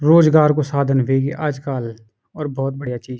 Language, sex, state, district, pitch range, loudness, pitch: Garhwali, male, Uttarakhand, Uttarkashi, 130-150 Hz, -18 LUFS, 135 Hz